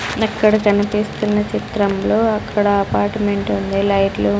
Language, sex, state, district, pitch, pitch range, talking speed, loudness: Telugu, female, Andhra Pradesh, Sri Satya Sai, 205 Hz, 200-215 Hz, 110 wpm, -17 LUFS